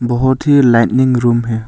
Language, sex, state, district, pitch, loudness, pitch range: Hindi, male, Arunachal Pradesh, Longding, 120 Hz, -12 LUFS, 120-130 Hz